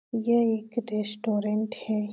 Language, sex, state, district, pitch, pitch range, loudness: Hindi, female, Uttar Pradesh, Etah, 220 Hz, 210-230 Hz, -28 LUFS